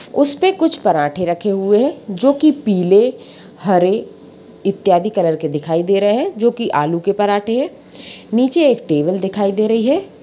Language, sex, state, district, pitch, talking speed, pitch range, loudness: Hindi, female, Bihar, Darbhanga, 205 Hz, 180 wpm, 185-250 Hz, -16 LUFS